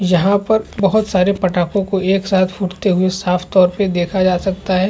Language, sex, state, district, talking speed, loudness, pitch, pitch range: Hindi, male, Chhattisgarh, Rajnandgaon, 220 wpm, -16 LUFS, 190 Hz, 185-195 Hz